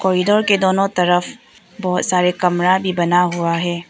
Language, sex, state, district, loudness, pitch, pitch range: Hindi, female, Arunachal Pradesh, Papum Pare, -17 LUFS, 180 Hz, 175-190 Hz